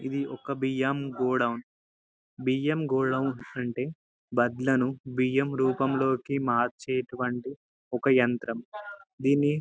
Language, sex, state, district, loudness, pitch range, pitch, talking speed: Telugu, male, Telangana, Karimnagar, -28 LUFS, 125-135 Hz, 130 Hz, 95 wpm